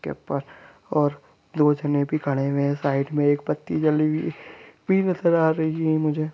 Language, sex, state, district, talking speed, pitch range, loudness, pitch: Hindi, male, Jharkhand, Sahebganj, 200 wpm, 145-160 Hz, -23 LUFS, 150 Hz